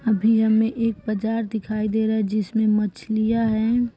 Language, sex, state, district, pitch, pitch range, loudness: Hindi, female, Bihar, Saran, 220 Hz, 215-225 Hz, -22 LUFS